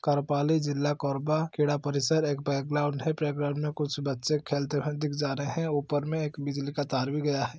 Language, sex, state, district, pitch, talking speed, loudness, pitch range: Hindi, male, Chhattisgarh, Korba, 145 Hz, 215 wpm, -29 LUFS, 140-150 Hz